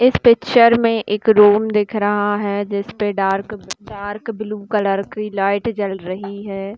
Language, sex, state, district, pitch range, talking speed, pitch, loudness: Hindi, female, Uttar Pradesh, Jalaun, 200-215 Hz, 150 wpm, 205 Hz, -17 LUFS